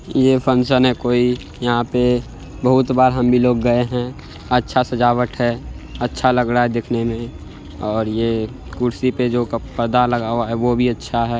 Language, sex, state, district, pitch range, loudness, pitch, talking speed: Hindi, male, Bihar, Araria, 115-125 Hz, -18 LUFS, 120 Hz, 190 wpm